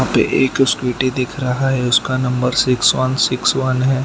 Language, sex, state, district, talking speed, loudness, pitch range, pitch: Hindi, male, Gujarat, Valsad, 180 wpm, -16 LUFS, 125-130 Hz, 130 Hz